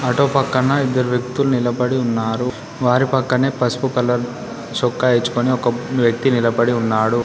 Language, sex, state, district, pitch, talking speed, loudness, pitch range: Telugu, male, Telangana, Komaram Bheem, 125 Hz, 130 wpm, -18 LUFS, 120-130 Hz